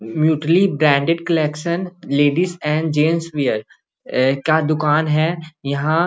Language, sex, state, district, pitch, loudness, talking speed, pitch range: Magahi, male, Bihar, Gaya, 155 Hz, -18 LUFS, 120 wpm, 150-165 Hz